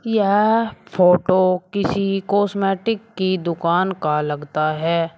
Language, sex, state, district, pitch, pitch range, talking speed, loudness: Hindi, male, Uttar Pradesh, Shamli, 185 Hz, 170-205 Hz, 105 wpm, -19 LUFS